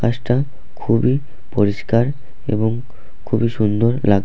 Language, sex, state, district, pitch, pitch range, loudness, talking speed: Bengali, male, West Bengal, Purulia, 115 Hz, 110-125 Hz, -19 LUFS, 100 wpm